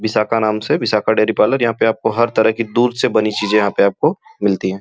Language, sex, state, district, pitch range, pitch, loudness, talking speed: Hindi, male, Uttar Pradesh, Gorakhpur, 100-115 Hz, 110 Hz, -16 LUFS, 235 wpm